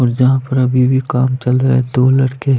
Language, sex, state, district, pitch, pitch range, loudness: Hindi, male, Punjab, Fazilka, 130 Hz, 125-130 Hz, -14 LUFS